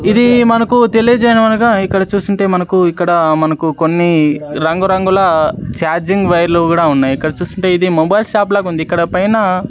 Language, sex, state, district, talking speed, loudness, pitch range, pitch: Telugu, male, Andhra Pradesh, Sri Satya Sai, 150 wpm, -12 LUFS, 165-200 Hz, 180 Hz